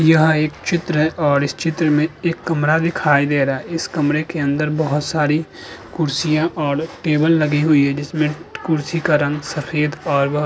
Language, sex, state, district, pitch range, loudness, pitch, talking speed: Hindi, male, Uttar Pradesh, Budaun, 145-160 Hz, -18 LUFS, 155 Hz, 190 wpm